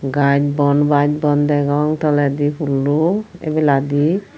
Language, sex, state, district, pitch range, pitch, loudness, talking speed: Chakma, female, Tripura, Unakoti, 145-155 Hz, 145 Hz, -16 LUFS, 110 wpm